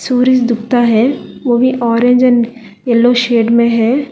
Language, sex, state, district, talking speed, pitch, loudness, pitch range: Hindi, female, Telangana, Hyderabad, 160 wpm, 240 Hz, -12 LUFS, 235-250 Hz